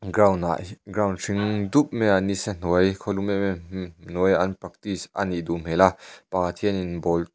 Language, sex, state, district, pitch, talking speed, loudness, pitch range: Mizo, male, Mizoram, Aizawl, 95 Hz, 195 wpm, -24 LUFS, 90-100 Hz